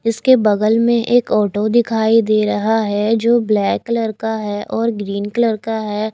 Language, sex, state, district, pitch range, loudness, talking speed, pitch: Hindi, female, Haryana, Jhajjar, 210-230 Hz, -16 LUFS, 185 wpm, 220 Hz